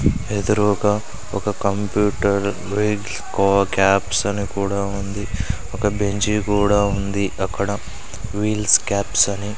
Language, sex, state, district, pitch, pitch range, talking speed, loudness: Telugu, male, Andhra Pradesh, Sri Satya Sai, 100 Hz, 100-105 Hz, 115 wpm, -20 LUFS